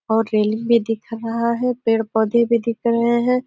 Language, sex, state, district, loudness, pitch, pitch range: Hindi, female, Uttar Pradesh, Deoria, -19 LUFS, 230 Hz, 225-235 Hz